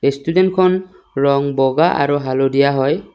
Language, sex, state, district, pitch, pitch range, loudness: Assamese, male, Assam, Kamrup Metropolitan, 140 Hz, 135-185 Hz, -16 LUFS